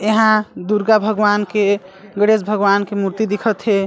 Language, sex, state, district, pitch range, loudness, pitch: Chhattisgarhi, female, Chhattisgarh, Sarguja, 200-215 Hz, -16 LUFS, 210 Hz